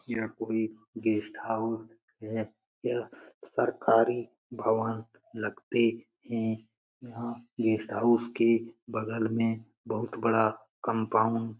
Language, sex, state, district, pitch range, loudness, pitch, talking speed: Hindi, male, Bihar, Lakhisarai, 110-115 Hz, -30 LUFS, 115 Hz, 105 wpm